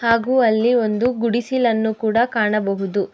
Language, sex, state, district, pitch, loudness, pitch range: Kannada, female, Karnataka, Bangalore, 230 Hz, -18 LUFS, 215-240 Hz